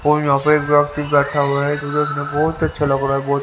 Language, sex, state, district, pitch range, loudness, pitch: Hindi, male, Haryana, Rohtak, 140-150 Hz, -17 LUFS, 145 Hz